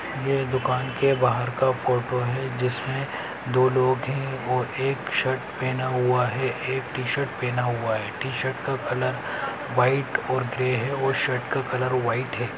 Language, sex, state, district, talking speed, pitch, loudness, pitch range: Hindi, male, Bihar, Saran, 165 wpm, 130 Hz, -25 LUFS, 125-130 Hz